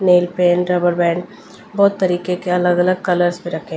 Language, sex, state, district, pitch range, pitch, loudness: Hindi, female, Delhi, New Delhi, 175-185 Hz, 180 Hz, -17 LUFS